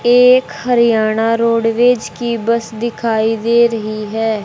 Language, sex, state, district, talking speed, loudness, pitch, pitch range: Hindi, male, Haryana, Rohtak, 120 wpm, -14 LUFS, 230 Hz, 220-235 Hz